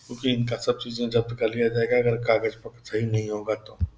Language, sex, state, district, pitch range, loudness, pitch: Hindi, male, Bihar, Purnia, 110-120 Hz, -25 LUFS, 115 Hz